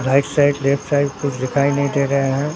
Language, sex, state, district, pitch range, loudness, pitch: Hindi, male, Bihar, Katihar, 135-145 Hz, -18 LUFS, 140 Hz